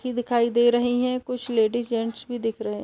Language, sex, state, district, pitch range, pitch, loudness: Hindi, female, Uttar Pradesh, Deoria, 230-245 Hz, 240 Hz, -24 LUFS